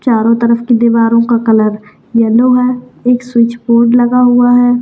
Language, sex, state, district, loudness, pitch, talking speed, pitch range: Kumaoni, female, Uttarakhand, Tehri Garhwal, -10 LUFS, 235 Hz, 175 wpm, 230-245 Hz